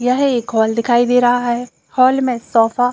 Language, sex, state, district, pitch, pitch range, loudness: Hindi, female, Uttar Pradesh, Jalaun, 245 Hz, 235-250 Hz, -15 LUFS